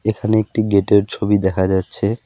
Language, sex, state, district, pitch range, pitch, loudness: Bengali, male, West Bengal, Alipurduar, 100-110 Hz, 105 Hz, -17 LUFS